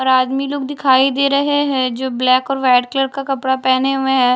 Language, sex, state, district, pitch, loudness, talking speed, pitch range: Hindi, female, Delhi, New Delhi, 265 Hz, -16 LUFS, 235 wpm, 260-275 Hz